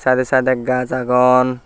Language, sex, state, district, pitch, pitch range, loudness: Chakma, male, Tripura, Dhalai, 130 Hz, 125-130 Hz, -16 LUFS